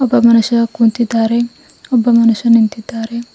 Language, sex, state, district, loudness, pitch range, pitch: Kannada, female, Karnataka, Bidar, -13 LUFS, 230-240 Hz, 235 Hz